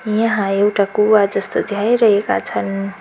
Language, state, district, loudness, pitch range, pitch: Nepali, West Bengal, Darjeeling, -16 LUFS, 200-215 Hz, 205 Hz